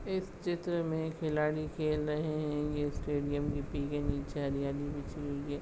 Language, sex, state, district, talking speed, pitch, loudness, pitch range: Hindi, male, Goa, North and South Goa, 150 wpm, 150 Hz, -35 LUFS, 145-155 Hz